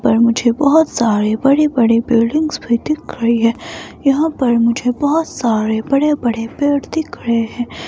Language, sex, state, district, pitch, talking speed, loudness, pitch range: Hindi, female, Himachal Pradesh, Shimla, 245 Hz, 165 wpm, -15 LUFS, 230-290 Hz